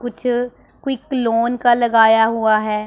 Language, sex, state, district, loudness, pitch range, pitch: Hindi, female, Punjab, Pathankot, -16 LUFS, 225-245 Hz, 235 Hz